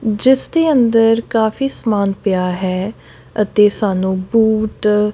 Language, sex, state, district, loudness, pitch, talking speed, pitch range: Punjabi, female, Punjab, Kapurthala, -15 LUFS, 215 Hz, 115 wpm, 200-225 Hz